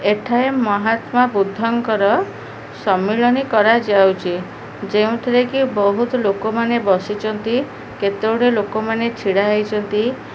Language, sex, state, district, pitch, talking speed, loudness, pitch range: Odia, female, Odisha, Khordha, 215 Hz, 85 wpm, -17 LUFS, 200-235 Hz